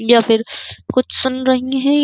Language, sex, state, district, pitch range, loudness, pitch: Hindi, female, Uttar Pradesh, Jyotiba Phule Nagar, 235-260 Hz, -16 LUFS, 255 Hz